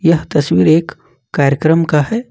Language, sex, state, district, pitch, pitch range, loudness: Hindi, male, Jharkhand, Ranchi, 160 Hz, 150-165 Hz, -13 LUFS